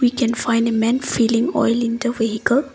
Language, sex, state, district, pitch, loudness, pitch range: English, female, Assam, Kamrup Metropolitan, 235 Hz, -19 LUFS, 230-245 Hz